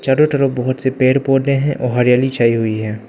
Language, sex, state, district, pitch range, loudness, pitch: Hindi, male, Arunachal Pradesh, Lower Dibang Valley, 120-135 Hz, -15 LUFS, 130 Hz